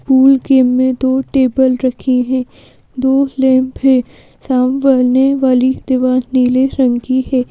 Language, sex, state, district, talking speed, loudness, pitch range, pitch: Hindi, female, Madhya Pradesh, Bhopal, 135 wpm, -13 LUFS, 255-265 Hz, 260 Hz